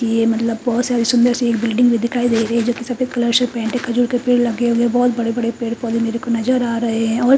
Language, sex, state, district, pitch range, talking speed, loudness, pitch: Hindi, female, Haryana, Charkhi Dadri, 230-245 Hz, 300 wpm, -17 LUFS, 235 Hz